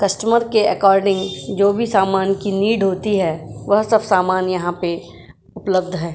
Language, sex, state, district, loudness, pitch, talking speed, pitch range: Hindi, female, Uttar Pradesh, Jyotiba Phule Nagar, -17 LUFS, 195 Hz, 165 wpm, 185-205 Hz